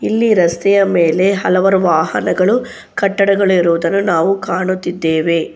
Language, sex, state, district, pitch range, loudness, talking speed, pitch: Kannada, female, Karnataka, Bangalore, 170-195 Hz, -14 LUFS, 95 wpm, 185 Hz